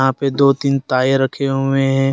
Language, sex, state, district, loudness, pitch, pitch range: Hindi, male, Jharkhand, Deoghar, -16 LUFS, 135 Hz, 135-140 Hz